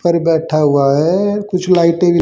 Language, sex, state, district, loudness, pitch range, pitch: Hindi, male, Haryana, Jhajjar, -13 LUFS, 160-180 Hz, 170 Hz